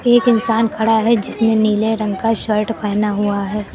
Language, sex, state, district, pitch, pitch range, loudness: Hindi, female, Uttar Pradesh, Lucknow, 220 Hz, 210-225 Hz, -16 LUFS